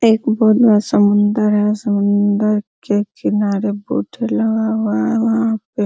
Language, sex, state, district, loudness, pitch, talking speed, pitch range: Hindi, female, Bihar, Araria, -16 LUFS, 205 Hz, 155 wpm, 205-220 Hz